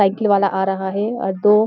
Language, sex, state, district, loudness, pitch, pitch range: Hindi, female, Uttarakhand, Uttarkashi, -18 LUFS, 200 Hz, 190-210 Hz